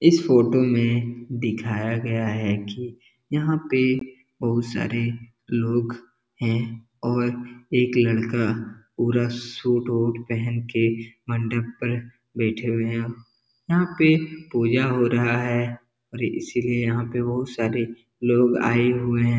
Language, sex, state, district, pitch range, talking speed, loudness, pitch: Hindi, male, Bihar, Darbhanga, 115-120 Hz, 130 wpm, -23 LUFS, 120 Hz